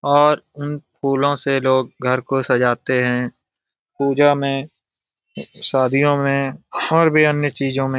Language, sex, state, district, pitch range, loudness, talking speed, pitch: Hindi, male, Bihar, Jamui, 130-145 Hz, -18 LUFS, 140 wpm, 140 Hz